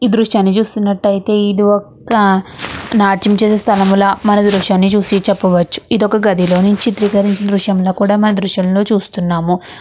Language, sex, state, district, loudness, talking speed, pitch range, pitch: Telugu, female, Andhra Pradesh, Chittoor, -13 LUFS, 140 wpm, 190-210 Hz, 200 Hz